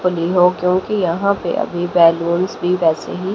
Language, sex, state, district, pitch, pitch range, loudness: Hindi, female, Haryana, Rohtak, 180 Hz, 170-185 Hz, -16 LUFS